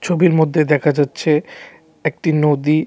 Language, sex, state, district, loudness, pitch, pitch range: Bengali, male, Tripura, West Tripura, -16 LUFS, 155 Hz, 150-160 Hz